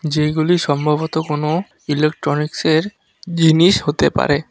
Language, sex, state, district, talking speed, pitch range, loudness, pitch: Bengali, male, West Bengal, Alipurduar, 95 wpm, 150-165 Hz, -17 LUFS, 155 Hz